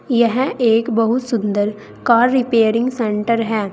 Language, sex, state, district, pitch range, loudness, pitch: Hindi, female, Uttar Pradesh, Saharanpur, 220-240 Hz, -17 LUFS, 230 Hz